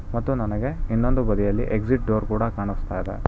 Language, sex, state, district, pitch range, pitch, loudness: Kannada, male, Karnataka, Bangalore, 100-120 Hz, 110 Hz, -24 LUFS